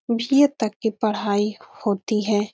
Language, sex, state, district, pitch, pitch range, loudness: Hindi, female, Bihar, Saran, 215 Hz, 205-230 Hz, -22 LUFS